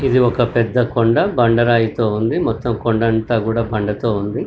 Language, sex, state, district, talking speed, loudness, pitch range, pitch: Telugu, male, Telangana, Karimnagar, 160 wpm, -17 LUFS, 110-120 Hz, 115 Hz